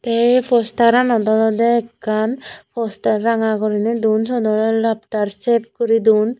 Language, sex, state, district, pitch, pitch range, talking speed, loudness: Chakma, female, Tripura, Dhalai, 225 Hz, 220-235 Hz, 130 wpm, -17 LUFS